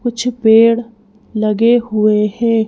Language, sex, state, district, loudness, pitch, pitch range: Hindi, female, Madhya Pradesh, Bhopal, -13 LUFS, 225 Hz, 215-235 Hz